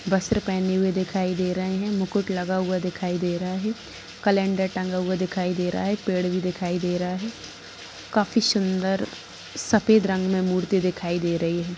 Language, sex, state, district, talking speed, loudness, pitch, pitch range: Hindi, female, Maharashtra, Aurangabad, 195 wpm, -24 LUFS, 185 Hz, 180-195 Hz